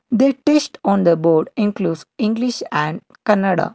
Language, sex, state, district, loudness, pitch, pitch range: English, male, Karnataka, Bangalore, -18 LUFS, 200 Hz, 165-245 Hz